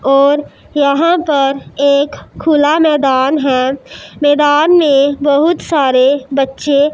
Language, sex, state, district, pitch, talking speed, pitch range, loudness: Hindi, male, Punjab, Pathankot, 285 Hz, 110 wpm, 275-295 Hz, -12 LUFS